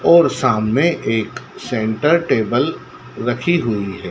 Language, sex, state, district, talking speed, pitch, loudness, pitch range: Hindi, male, Madhya Pradesh, Dhar, 115 wpm, 120 Hz, -17 LUFS, 110-150 Hz